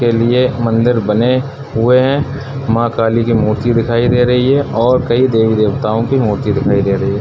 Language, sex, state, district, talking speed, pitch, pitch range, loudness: Hindi, male, Uttar Pradesh, Budaun, 190 wpm, 120 Hz, 115-130 Hz, -13 LUFS